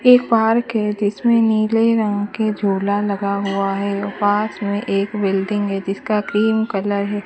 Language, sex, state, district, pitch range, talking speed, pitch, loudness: Hindi, female, Rajasthan, Bikaner, 200-220 Hz, 175 wpm, 205 Hz, -18 LUFS